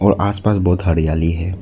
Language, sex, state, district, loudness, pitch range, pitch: Hindi, male, Arunachal Pradesh, Lower Dibang Valley, -17 LUFS, 85-100 Hz, 90 Hz